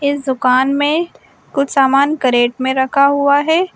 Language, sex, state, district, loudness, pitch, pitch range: Hindi, female, Uttar Pradesh, Shamli, -14 LUFS, 275 Hz, 265-285 Hz